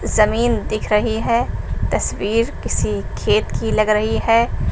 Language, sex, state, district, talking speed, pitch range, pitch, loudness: Hindi, female, Uttar Pradesh, Lucknow, 140 wpm, 215-230 Hz, 220 Hz, -19 LUFS